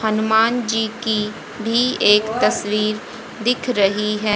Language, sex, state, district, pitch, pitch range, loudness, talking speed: Hindi, female, Haryana, Rohtak, 220 Hz, 210-230 Hz, -18 LUFS, 125 wpm